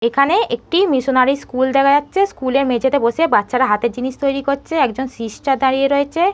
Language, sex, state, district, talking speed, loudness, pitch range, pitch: Bengali, female, West Bengal, North 24 Parganas, 190 wpm, -16 LUFS, 255-280 Hz, 270 Hz